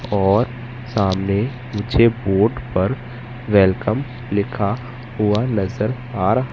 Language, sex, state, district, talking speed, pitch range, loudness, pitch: Hindi, male, Madhya Pradesh, Katni, 90 wpm, 100-125 Hz, -19 LUFS, 115 Hz